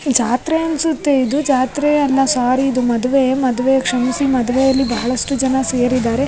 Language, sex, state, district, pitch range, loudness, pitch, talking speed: Kannada, female, Karnataka, Raichur, 250-275 Hz, -16 LUFS, 265 Hz, 135 wpm